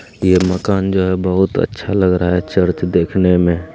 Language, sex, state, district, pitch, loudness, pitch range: Hindi, male, Bihar, Lakhisarai, 90 Hz, -15 LUFS, 90-95 Hz